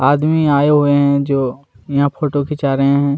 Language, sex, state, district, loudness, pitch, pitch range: Hindi, male, Chhattisgarh, Kabirdham, -15 LUFS, 140 Hz, 140-145 Hz